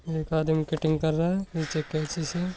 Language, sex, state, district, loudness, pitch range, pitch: Hindi, male, Rajasthan, Nagaur, -27 LUFS, 155-170 Hz, 160 Hz